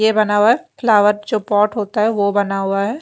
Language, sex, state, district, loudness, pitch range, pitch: Hindi, female, Maharashtra, Mumbai Suburban, -16 LUFS, 205-220 Hz, 210 Hz